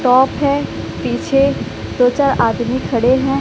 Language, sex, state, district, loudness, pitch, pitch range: Hindi, female, Odisha, Sambalpur, -16 LUFS, 260 Hz, 245-275 Hz